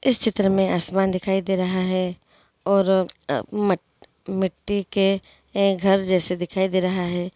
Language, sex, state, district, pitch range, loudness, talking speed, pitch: Hindi, female, Andhra Pradesh, Chittoor, 185-195 Hz, -22 LUFS, 140 wpm, 190 Hz